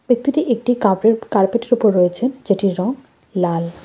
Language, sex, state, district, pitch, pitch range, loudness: Bengali, female, West Bengal, Cooch Behar, 220 Hz, 190-245 Hz, -18 LUFS